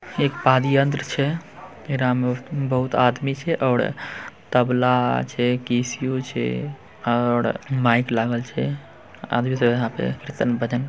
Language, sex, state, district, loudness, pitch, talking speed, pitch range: Hindi, male, Bihar, Purnia, -22 LUFS, 125 Hz, 130 wpm, 120-135 Hz